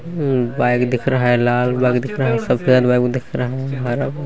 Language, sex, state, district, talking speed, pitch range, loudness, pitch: Hindi, male, Chhattisgarh, Balrampur, 210 wpm, 125-135 Hz, -17 LUFS, 125 Hz